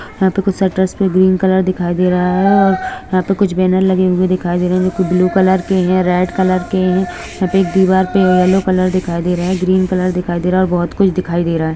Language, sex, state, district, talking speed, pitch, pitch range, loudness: Hindi, female, Bihar, East Champaran, 195 wpm, 185 Hz, 180-190 Hz, -14 LUFS